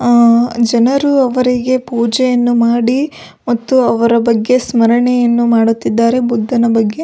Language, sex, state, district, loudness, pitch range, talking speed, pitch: Kannada, female, Karnataka, Belgaum, -12 LUFS, 235-250 Hz, 110 wpm, 240 Hz